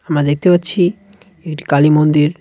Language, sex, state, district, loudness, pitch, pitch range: Bengali, male, West Bengal, Cooch Behar, -13 LUFS, 160 Hz, 150-180 Hz